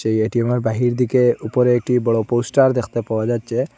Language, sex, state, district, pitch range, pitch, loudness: Bengali, male, Assam, Hailakandi, 115-125 Hz, 120 Hz, -18 LUFS